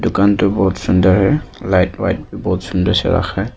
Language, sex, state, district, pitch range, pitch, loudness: Hindi, male, Arunachal Pradesh, Papum Pare, 90-100 Hz, 95 Hz, -16 LUFS